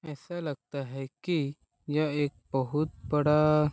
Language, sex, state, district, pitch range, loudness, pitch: Hindi, male, Chhattisgarh, Balrampur, 140-155 Hz, -30 LUFS, 150 Hz